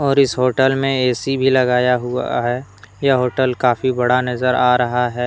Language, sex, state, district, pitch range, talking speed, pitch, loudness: Hindi, male, Jharkhand, Deoghar, 125-130 Hz, 195 wpm, 125 Hz, -17 LUFS